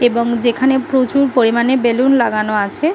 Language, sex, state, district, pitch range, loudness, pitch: Bengali, female, West Bengal, Malda, 235-265 Hz, -14 LUFS, 245 Hz